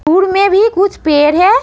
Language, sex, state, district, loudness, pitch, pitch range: Hindi, female, Uttar Pradesh, Etah, -11 LUFS, 380 Hz, 320-395 Hz